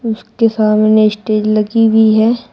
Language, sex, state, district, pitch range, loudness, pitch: Hindi, female, Uttar Pradesh, Shamli, 215-225 Hz, -12 LUFS, 220 Hz